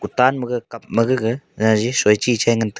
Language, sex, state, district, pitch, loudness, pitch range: Wancho, male, Arunachal Pradesh, Longding, 115 Hz, -18 LUFS, 110-125 Hz